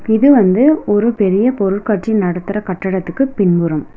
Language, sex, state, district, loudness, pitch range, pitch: Tamil, female, Tamil Nadu, Nilgiris, -14 LUFS, 190-225 Hz, 205 Hz